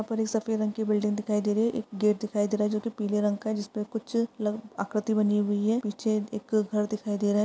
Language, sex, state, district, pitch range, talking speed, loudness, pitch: Hindi, female, Uttar Pradesh, Varanasi, 210-220 Hz, 275 wpm, -28 LUFS, 215 Hz